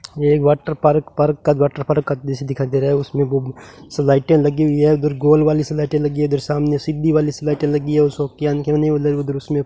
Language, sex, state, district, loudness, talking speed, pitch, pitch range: Hindi, male, Rajasthan, Bikaner, -17 LUFS, 215 wpm, 150 Hz, 140-150 Hz